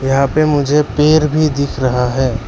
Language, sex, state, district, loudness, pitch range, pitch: Hindi, male, Arunachal Pradesh, Lower Dibang Valley, -14 LUFS, 130-150 Hz, 140 Hz